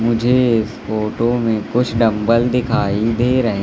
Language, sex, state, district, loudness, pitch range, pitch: Hindi, male, Madhya Pradesh, Katni, -17 LUFS, 110-120 Hz, 115 Hz